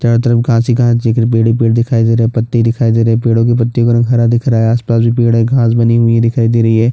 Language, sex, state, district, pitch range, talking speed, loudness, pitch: Hindi, male, Chhattisgarh, Bastar, 115-120 Hz, 320 wpm, -11 LUFS, 115 Hz